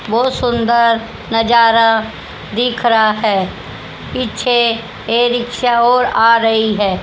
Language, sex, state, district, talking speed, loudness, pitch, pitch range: Hindi, female, Haryana, Rohtak, 110 wpm, -14 LUFS, 230 Hz, 220-240 Hz